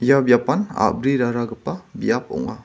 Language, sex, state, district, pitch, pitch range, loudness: Garo, male, Meghalaya, West Garo Hills, 135 Hz, 120-185 Hz, -20 LUFS